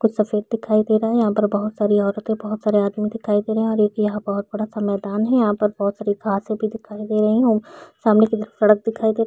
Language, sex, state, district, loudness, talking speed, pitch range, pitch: Hindi, female, Chhattisgarh, Rajnandgaon, -20 LUFS, 280 wpm, 210-220 Hz, 215 Hz